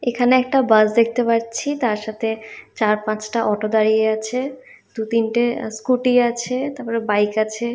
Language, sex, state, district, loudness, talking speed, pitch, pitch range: Bengali, female, Odisha, Khordha, -19 LUFS, 145 wpm, 230 Hz, 220-245 Hz